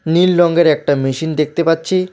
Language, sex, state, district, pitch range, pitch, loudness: Bengali, male, West Bengal, Alipurduar, 155-175 Hz, 165 Hz, -14 LUFS